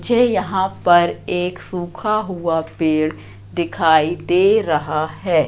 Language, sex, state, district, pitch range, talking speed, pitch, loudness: Hindi, female, Madhya Pradesh, Katni, 160-190 Hz, 120 wpm, 175 Hz, -18 LUFS